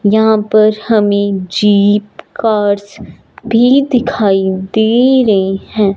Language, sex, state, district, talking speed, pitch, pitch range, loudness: Hindi, female, Punjab, Fazilka, 100 wpm, 210 Hz, 200-225 Hz, -12 LUFS